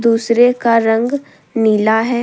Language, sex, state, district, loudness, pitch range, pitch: Hindi, female, Jharkhand, Deoghar, -14 LUFS, 225-240 Hz, 230 Hz